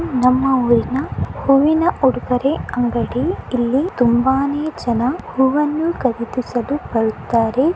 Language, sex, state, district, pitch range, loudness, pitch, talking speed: Kannada, female, Karnataka, Dakshina Kannada, 240-290 Hz, -18 LUFS, 260 Hz, 85 wpm